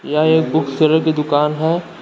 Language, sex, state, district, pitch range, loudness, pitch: Hindi, male, Uttar Pradesh, Lucknow, 150-160 Hz, -16 LUFS, 155 Hz